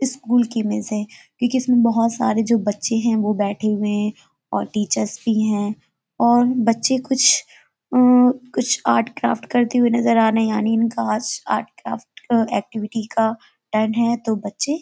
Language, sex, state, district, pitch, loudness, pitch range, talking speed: Hindi, female, Uttar Pradesh, Hamirpur, 230 Hz, -19 LUFS, 215-245 Hz, 180 wpm